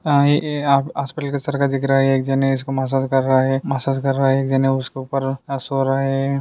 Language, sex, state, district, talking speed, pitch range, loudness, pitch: Hindi, male, Maharashtra, Solapur, 260 wpm, 135-140 Hz, -19 LUFS, 135 Hz